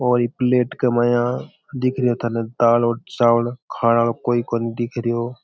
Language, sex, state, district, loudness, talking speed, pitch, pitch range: Rajasthani, male, Rajasthan, Churu, -20 LUFS, 185 wpm, 120 Hz, 115-125 Hz